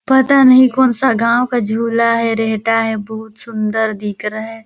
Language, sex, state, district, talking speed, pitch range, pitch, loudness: Hindi, female, Chhattisgarh, Balrampur, 195 wpm, 220-245 Hz, 225 Hz, -14 LUFS